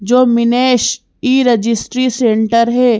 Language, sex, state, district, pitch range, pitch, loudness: Hindi, female, Madhya Pradesh, Bhopal, 230-255 Hz, 240 Hz, -13 LUFS